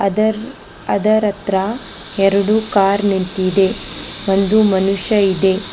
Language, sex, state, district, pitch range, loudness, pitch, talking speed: Kannada, female, Karnataka, Bangalore, 195-215 Hz, -16 LUFS, 200 Hz, 85 wpm